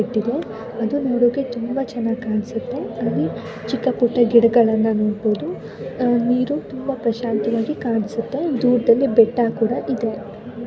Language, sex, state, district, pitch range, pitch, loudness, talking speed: Kannada, female, Karnataka, Shimoga, 225-250 Hz, 235 Hz, -20 LUFS, 100 wpm